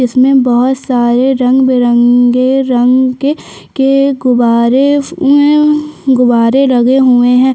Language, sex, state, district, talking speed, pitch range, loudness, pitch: Hindi, female, Chhattisgarh, Sukma, 110 wpm, 245-270 Hz, -9 LUFS, 255 Hz